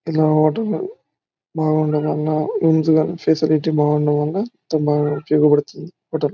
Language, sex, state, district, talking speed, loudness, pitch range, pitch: Telugu, male, Andhra Pradesh, Anantapur, 130 wpm, -18 LUFS, 150-160 Hz, 155 Hz